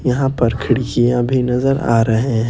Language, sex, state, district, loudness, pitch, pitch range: Hindi, male, Jharkhand, Ranchi, -16 LUFS, 120 Hz, 115-130 Hz